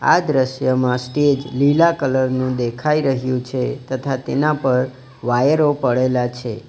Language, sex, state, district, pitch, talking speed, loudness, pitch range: Gujarati, male, Gujarat, Valsad, 130 Hz, 135 wpm, -18 LUFS, 125-140 Hz